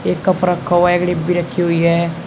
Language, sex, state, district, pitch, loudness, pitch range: Hindi, male, Uttar Pradesh, Shamli, 175 Hz, -16 LUFS, 170-180 Hz